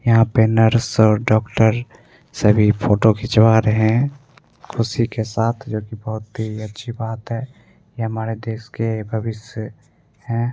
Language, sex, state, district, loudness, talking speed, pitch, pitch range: Hindi, male, Bihar, Begusarai, -19 LUFS, 150 wpm, 110 Hz, 110-115 Hz